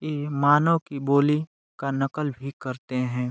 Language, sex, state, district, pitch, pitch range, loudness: Hindi, male, Uttar Pradesh, Deoria, 140 Hz, 135-150 Hz, -25 LUFS